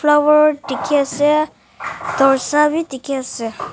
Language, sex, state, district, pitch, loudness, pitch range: Nagamese, female, Nagaland, Dimapur, 290 Hz, -16 LUFS, 270-300 Hz